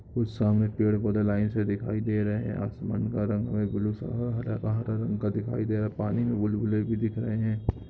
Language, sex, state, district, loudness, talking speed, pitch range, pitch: Hindi, male, Goa, North and South Goa, -28 LUFS, 230 wpm, 105-110 Hz, 105 Hz